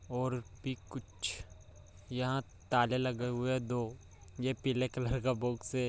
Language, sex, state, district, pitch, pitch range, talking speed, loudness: Hindi, male, Bihar, Bhagalpur, 125 Hz, 95-130 Hz, 145 wpm, -36 LUFS